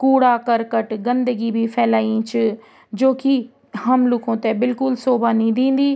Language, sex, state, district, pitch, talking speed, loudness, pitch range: Garhwali, female, Uttarakhand, Tehri Garhwal, 240 Hz, 140 wpm, -18 LUFS, 225-255 Hz